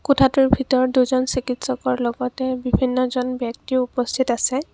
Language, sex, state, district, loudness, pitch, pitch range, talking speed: Assamese, female, Assam, Kamrup Metropolitan, -20 LUFS, 255 Hz, 250-260 Hz, 125 wpm